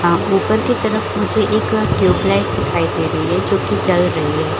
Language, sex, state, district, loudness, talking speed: Hindi, female, Chhattisgarh, Bilaspur, -16 LUFS, 245 wpm